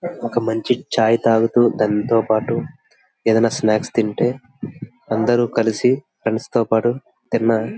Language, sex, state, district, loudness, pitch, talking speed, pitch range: Telugu, male, Andhra Pradesh, Visakhapatnam, -19 LUFS, 115 Hz, 130 wpm, 110-120 Hz